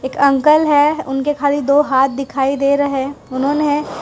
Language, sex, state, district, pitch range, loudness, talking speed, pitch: Hindi, female, Gujarat, Valsad, 270-290 Hz, -15 LUFS, 165 wpm, 280 Hz